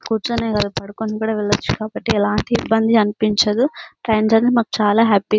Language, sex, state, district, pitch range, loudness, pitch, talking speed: Telugu, female, Andhra Pradesh, Anantapur, 210-225 Hz, -18 LUFS, 220 Hz, 165 wpm